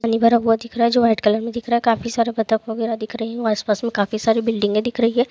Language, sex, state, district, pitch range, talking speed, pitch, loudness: Hindi, female, Chhattisgarh, Korba, 220-235 Hz, 350 wpm, 230 Hz, -19 LUFS